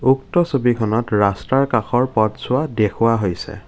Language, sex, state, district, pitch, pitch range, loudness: Assamese, male, Assam, Kamrup Metropolitan, 115 Hz, 105-130 Hz, -18 LUFS